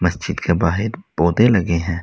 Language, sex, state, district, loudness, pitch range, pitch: Hindi, male, Delhi, New Delhi, -18 LUFS, 85-105 Hz, 90 Hz